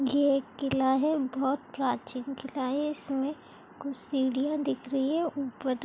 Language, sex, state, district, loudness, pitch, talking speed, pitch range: Hindi, female, Chhattisgarh, Bilaspur, -30 LUFS, 275 Hz, 155 wpm, 265-285 Hz